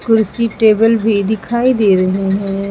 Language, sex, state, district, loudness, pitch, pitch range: Hindi, female, Uttar Pradesh, Saharanpur, -14 LUFS, 220 Hz, 195-225 Hz